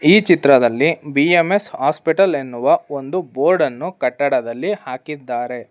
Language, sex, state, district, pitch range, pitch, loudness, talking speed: Kannada, female, Karnataka, Bangalore, 130-175 Hz, 145 Hz, -17 LUFS, 105 wpm